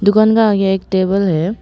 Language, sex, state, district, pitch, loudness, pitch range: Hindi, female, Arunachal Pradesh, Papum Pare, 195 Hz, -14 LUFS, 190-210 Hz